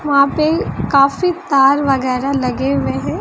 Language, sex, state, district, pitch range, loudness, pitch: Hindi, female, Bihar, West Champaran, 270-295 Hz, -15 LUFS, 275 Hz